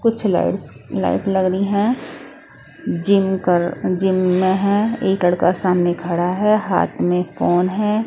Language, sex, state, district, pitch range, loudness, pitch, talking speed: Hindi, female, Bihar, West Champaran, 180-200 Hz, -18 LUFS, 185 Hz, 150 wpm